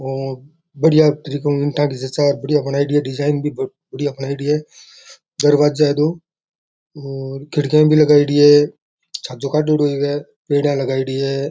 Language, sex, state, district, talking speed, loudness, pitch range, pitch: Rajasthani, male, Rajasthan, Nagaur, 150 wpm, -17 LUFS, 140-150 Hz, 145 Hz